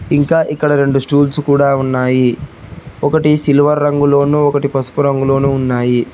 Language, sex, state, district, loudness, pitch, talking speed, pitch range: Telugu, male, Telangana, Hyderabad, -13 LUFS, 140 Hz, 125 wpm, 135-145 Hz